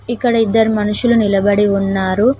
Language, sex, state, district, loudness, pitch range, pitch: Telugu, female, Telangana, Mahabubabad, -14 LUFS, 205-235 Hz, 210 Hz